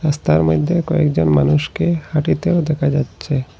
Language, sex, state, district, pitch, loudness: Bengali, male, Assam, Hailakandi, 145 Hz, -17 LUFS